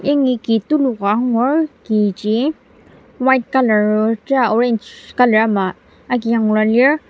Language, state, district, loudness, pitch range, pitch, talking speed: Ao, Nagaland, Dimapur, -16 LUFS, 215-265 Hz, 235 Hz, 135 wpm